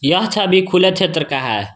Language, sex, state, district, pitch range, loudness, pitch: Hindi, male, Jharkhand, Garhwa, 135-190 Hz, -15 LUFS, 185 Hz